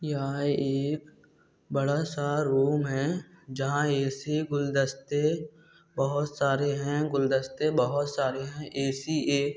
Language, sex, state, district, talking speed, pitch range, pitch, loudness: Hindi, male, Bihar, Darbhanga, 105 wpm, 135-150 Hz, 145 Hz, -28 LUFS